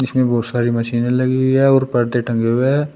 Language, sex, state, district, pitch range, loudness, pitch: Hindi, male, Uttar Pradesh, Shamli, 120-130 Hz, -16 LUFS, 125 Hz